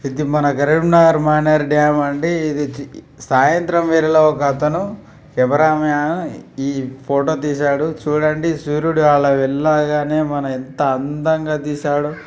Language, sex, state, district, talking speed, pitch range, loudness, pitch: Telugu, male, Telangana, Karimnagar, 110 wpm, 145-155 Hz, -16 LUFS, 150 Hz